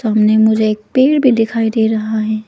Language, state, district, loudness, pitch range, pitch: Hindi, Arunachal Pradesh, Lower Dibang Valley, -13 LUFS, 215-225 Hz, 220 Hz